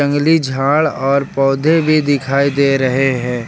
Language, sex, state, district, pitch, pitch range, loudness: Hindi, male, Jharkhand, Ranchi, 140 Hz, 135-145 Hz, -14 LUFS